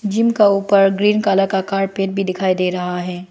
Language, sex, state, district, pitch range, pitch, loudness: Hindi, female, Arunachal Pradesh, Lower Dibang Valley, 185-200 Hz, 195 Hz, -17 LUFS